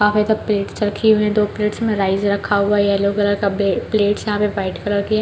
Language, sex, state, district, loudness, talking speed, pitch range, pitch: Hindi, female, Chhattisgarh, Balrampur, -18 LUFS, 265 wpm, 200-210 Hz, 205 Hz